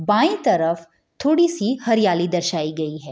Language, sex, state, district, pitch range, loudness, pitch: Hindi, female, Bihar, Madhepura, 165-225 Hz, -20 LUFS, 175 Hz